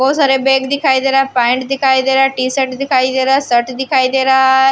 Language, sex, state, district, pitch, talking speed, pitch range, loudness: Hindi, female, Bihar, Patna, 265 Hz, 280 wpm, 260-270 Hz, -13 LUFS